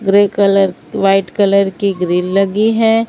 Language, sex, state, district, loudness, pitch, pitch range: Hindi, female, Maharashtra, Mumbai Suburban, -13 LUFS, 195 Hz, 195-205 Hz